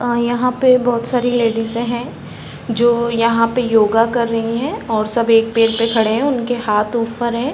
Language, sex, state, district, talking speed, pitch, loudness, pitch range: Hindi, female, Uttar Pradesh, Varanasi, 200 wpm, 235 Hz, -16 LUFS, 225-240 Hz